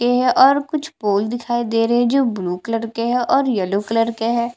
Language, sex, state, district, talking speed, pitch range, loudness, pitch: Hindi, female, Chhattisgarh, Bastar, 250 wpm, 225-250 Hz, -18 LUFS, 235 Hz